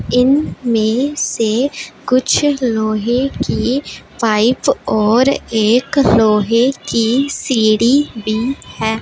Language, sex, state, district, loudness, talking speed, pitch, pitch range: Hindi, female, Punjab, Pathankot, -15 LUFS, 85 wpm, 240 Hz, 220-270 Hz